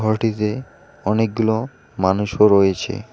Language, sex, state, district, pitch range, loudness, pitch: Bengali, male, West Bengal, Alipurduar, 100-115 Hz, -19 LUFS, 110 Hz